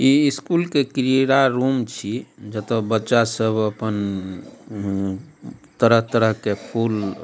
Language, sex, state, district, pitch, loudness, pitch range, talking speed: Maithili, male, Bihar, Darbhanga, 115 Hz, -21 LUFS, 105-130 Hz, 115 wpm